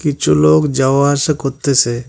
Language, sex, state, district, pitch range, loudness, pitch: Bengali, male, West Bengal, Cooch Behar, 120-145 Hz, -13 LUFS, 135 Hz